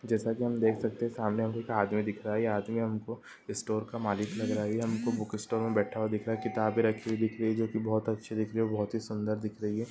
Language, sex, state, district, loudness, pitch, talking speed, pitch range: Hindi, male, Chhattisgarh, Bilaspur, -32 LUFS, 110 Hz, 300 wpm, 105-115 Hz